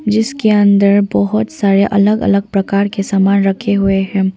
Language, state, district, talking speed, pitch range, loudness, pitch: Hindi, Arunachal Pradesh, Papum Pare, 165 wpm, 195-205 Hz, -13 LUFS, 200 Hz